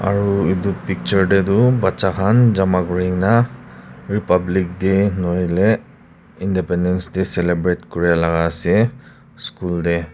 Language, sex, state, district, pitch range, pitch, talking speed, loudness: Nagamese, male, Nagaland, Kohima, 90-100 Hz, 95 Hz, 125 wpm, -18 LUFS